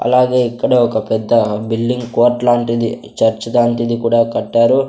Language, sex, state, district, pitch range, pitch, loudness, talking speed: Telugu, male, Andhra Pradesh, Sri Satya Sai, 115-120 Hz, 115 Hz, -15 LUFS, 135 wpm